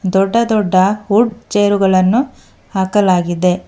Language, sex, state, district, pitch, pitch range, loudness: Kannada, female, Karnataka, Bangalore, 195 Hz, 185-215 Hz, -14 LUFS